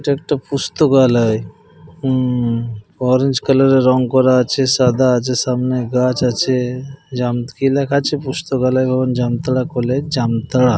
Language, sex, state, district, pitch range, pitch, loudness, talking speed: Bengali, male, Jharkhand, Jamtara, 125-135 Hz, 130 Hz, -16 LUFS, 135 wpm